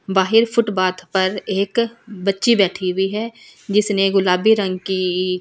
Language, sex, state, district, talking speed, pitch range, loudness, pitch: Hindi, female, Delhi, New Delhi, 135 wpm, 185-215 Hz, -18 LUFS, 195 Hz